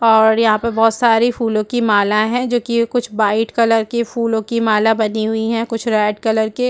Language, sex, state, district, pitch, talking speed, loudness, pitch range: Hindi, female, Chhattisgarh, Rajnandgaon, 225 Hz, 235 wpm, -16 LUFS, 220-235 Hz